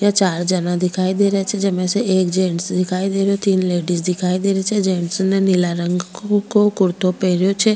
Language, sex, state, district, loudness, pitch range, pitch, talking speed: Rajasthani, female, Rajasthan, Churu, -18 LUFS, 180-195 Hz, 185 Hz, 215 wpm